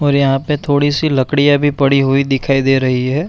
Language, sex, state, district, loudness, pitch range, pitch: Hindi, male, Bihar, Araria, -14 LUFS, 135-145 Hz, 140 Hz